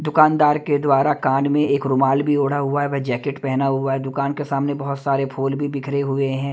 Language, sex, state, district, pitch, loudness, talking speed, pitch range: Hindi, male, Delhi, New Delhi, 140 Hz, -20 LUFS, 240 wpm, 135-145 Hz